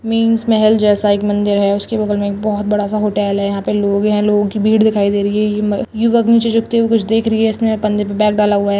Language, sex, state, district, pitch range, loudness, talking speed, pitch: Chhattisgarhi, female, Chhattisgarh, Rajnandgaon, 205-220 Hz, -14 LUFS, 270 wpm, 210 Hz